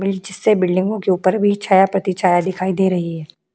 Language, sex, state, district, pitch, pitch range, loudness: Hindi, female, Uttar Pradesh, Jyotiba Phule Nagar, 190 Hz, 180-195 Hz, -17 LUFS